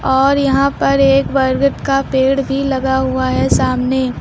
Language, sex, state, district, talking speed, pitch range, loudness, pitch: Hindi, female, Uttar Pradesh, Lucknow, 170 wpm, 265-275 Hz, -14 LUFS, 270 Hz